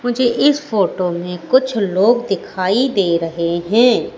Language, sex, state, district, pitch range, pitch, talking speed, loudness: Hindi, female, Madhya Pradesh, Katni, 180-245 Hz, 200 Hz, 145 wpm, -16 LUFS